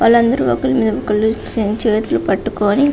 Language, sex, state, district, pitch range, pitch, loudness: Telugu, female, Andhra Pradesh, Visakhapatnam, 205-230 Hz, 220 Hz, -16 LUFS